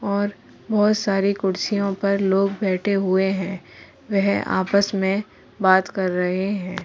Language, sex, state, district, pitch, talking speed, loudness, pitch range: Hindi, female, Uttar Pradesh, Varanasi, 195 Hz, 140 wpm, -21 LUFS, 190-200 Hz